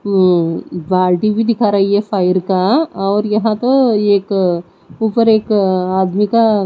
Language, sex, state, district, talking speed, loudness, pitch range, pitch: Hindi, female, Odisha, Nuapada, 145 wpm, -14 LUFS, 185-220 Hz, 200 Hz